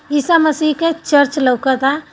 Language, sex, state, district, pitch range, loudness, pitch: Hindi, female, Bihar, Gopalganj, 275-315 Hz, -14 LUFS, 295 Hz